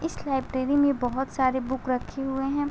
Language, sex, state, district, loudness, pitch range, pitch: Hindi, female, Uttar Pradesh, Gorakhpur, -26 LUFS, 260-280 Hz, 265 Hz